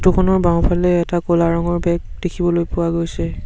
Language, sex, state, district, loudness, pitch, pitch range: Assamese, male, Assam, Sonitpur, -18 LUFS, 175 Hz, 170-175 Hz